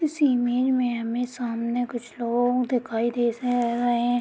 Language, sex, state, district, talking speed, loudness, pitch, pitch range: Hindi, female, Uttar Pradesh, Deoria, 155 wpm, -25 LUFS, 245 Hz, 235-250 Hz